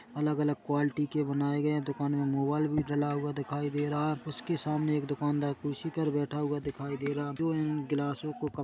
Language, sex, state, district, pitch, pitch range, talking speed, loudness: Hindi, male, Chhattisgarh, Korba, 145 Hz, 145-150 Hz, 210 wpm, -32 LUFS